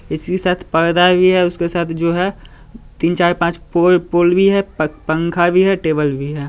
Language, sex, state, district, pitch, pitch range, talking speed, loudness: Hindi, male, Bihar, Muzaffarpur, 175 Hz, 165-180 Hz, 220 wpm, -15 LUFS